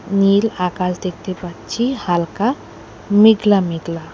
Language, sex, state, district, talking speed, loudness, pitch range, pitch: Bengali, female, West Bengal, Alipurduar, 100 wpm, -17 LUFS, 175-210 Hz, 190 Hz